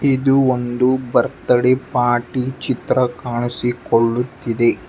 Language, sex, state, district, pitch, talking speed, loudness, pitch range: Kannada, male, Karnataka, Bangalore, 125 Hz, 75 wpm, -18 LUFS, 120-130 Hz